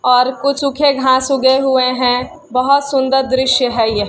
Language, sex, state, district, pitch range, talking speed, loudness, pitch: Hindi, female, Bihar, Kishanganj, 250-275 Hz, 175 wpm, -14 LUFS, 260 Hz